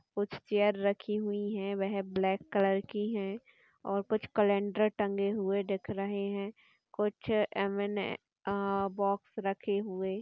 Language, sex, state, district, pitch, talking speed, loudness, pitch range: Hindi, female, Uttar Pradesh, Etah, 200 Hz, 145 wpm, -33 LUFS, 195-210 Hz